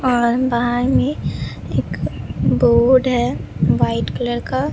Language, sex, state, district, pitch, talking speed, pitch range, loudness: Hindi, female, Bihar, Katihar, 245 Hz, 115 wpm, 240-255 Hz, -18 LUFS